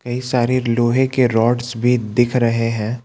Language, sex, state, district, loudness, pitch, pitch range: Hindi, male, Jharkhand, Ranchi, -17 LUFS, 120 Hz, 115-125 Hz